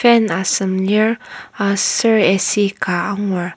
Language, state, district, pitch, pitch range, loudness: Ao, Nagaland, Kohima, 200 Hz, 190-220 Hz, -16 LUFS